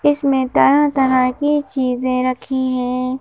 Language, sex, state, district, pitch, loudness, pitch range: Hindi, female, Madhya Pradesh, Bhopal, 260 Hz, -17 LUFS, 255-280 Hz